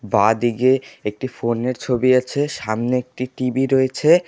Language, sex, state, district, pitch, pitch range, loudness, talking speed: Bengali, male, West Bengal, Alipurduar, 125 Hz, 120-130 Hz, -20 LUFS, 125 wpm